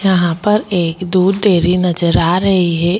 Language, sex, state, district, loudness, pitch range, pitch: Hindi, male, Delhi, New Delhi, -14 LUFS, 170-190 Hz, 180 Hz